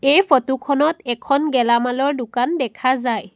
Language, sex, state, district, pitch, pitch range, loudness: Assamese, female, Assam, Sonitpur, 260 Hz, 245-280 Hz, -18 LUFS